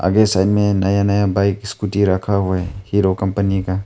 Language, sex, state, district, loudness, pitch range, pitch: Hindi, male, Arunachal Pradesh, Longding, -17 LUFS, 95-100 Hz, 100 Hz